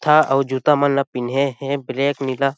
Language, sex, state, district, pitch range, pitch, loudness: Chhattisgarhi, male, Chhattisgarh, Sarguja, 135-140 Hz, 140 Hz, -19 LUFS